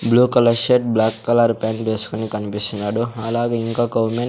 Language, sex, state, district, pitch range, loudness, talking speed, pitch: Telugu, male, Andhra Pradesh, Sri Satya Sai, 110-120 Hz, -19 LUFS, 170 wpm, 115 Hz